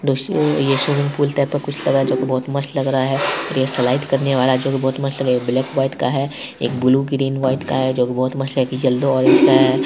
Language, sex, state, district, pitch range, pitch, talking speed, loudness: Hindi, male, Bihar, Saharsa, 130-140 Hz, 135 Hz, 320 wpm, -18 LUFS